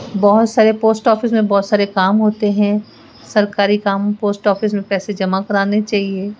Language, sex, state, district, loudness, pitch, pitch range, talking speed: Hindi, female, Rajasthan, Jaipur, -15 LUFS, 205 Hz, 200-215 Hz, 180 wpm